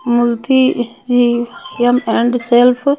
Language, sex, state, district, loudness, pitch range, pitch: Hindi, female, Bihar, Patna, -14 LUFS, 240-260 Hz, 245 Hz